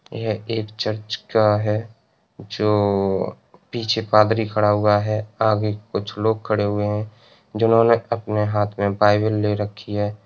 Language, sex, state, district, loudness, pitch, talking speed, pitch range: Hindi, male, Uttar Pradesh, Etah, -21 LUFS, 105 Hz, 140 wpm, 105-110 Hz